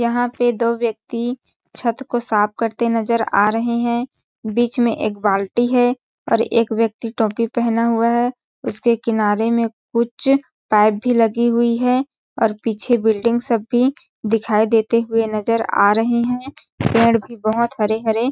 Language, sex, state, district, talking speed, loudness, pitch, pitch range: Hindi, female, Chhattisgarh, Balrampur, 165 wpm, -18 LUFS, 230 Hz, 225-240 Hz